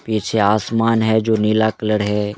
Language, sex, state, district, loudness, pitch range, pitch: Hindi, male, Jharkhand, Jamtara, -17 LUFS, 105-110 Hz, 110 Hz